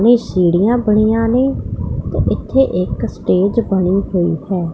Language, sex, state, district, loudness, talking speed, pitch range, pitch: Punjabi, female, Punjab, Pathankot, -15 LUFS, 140 wpm, 180-230 Hz, 195 Hz